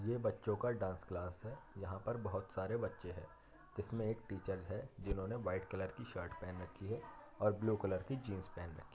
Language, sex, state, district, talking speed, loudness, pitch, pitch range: Hindi, male, Uttar Pradesh, Jyotiba Phule Nagar, 220 wpm, -43 LUFS, 100 Hz, 95-110 Hz